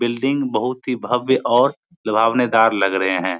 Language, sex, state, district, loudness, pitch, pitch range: Hindi, male, Bihar, Supaul, -18 LUFS, 125 Hz, 110-130 Hz